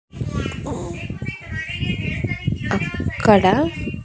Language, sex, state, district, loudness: Telugu, female, Andhra Pradesh, Annamaya, -21 LUFS